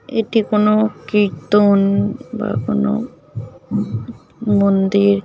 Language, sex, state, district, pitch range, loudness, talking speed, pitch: Bengali, female, West Bengal, Jalpaiguri, 190-215 Hz, -17 LUFS, 80 wpm, 200 Hz